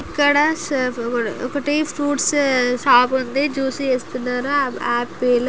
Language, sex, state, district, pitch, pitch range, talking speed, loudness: Telugu, female, Andhra Pradesh, Guntur, 265 Hz, 250-285 Hz, 85 wpm, -19 LUFS